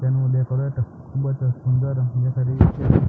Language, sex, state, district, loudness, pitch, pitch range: Gujarati, male, Gujarat, Gandhinagar, -21 LUFS, 130 Hz, 125-130 Hz